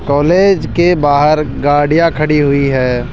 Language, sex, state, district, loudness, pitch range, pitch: Hindi, male, Rajasthan, Jaipur, -11 LUFS, 140-165 Hz, 150 Hz